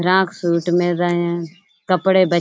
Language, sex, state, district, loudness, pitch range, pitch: Hindi, female, Uttar Pradesh, Budaun, -18 LUFS, 170-185 Hz, 175 Hz